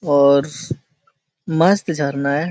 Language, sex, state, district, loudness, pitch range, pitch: Hindi, male, Bihar, Jahanabad, -17 LUFS, 140-170 Hz, 155 Hz